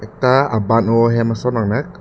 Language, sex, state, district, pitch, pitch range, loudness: Karbi, male, Assam, Karbi Anglong, 115 Hz, 110-125 Hz, -16 LUFS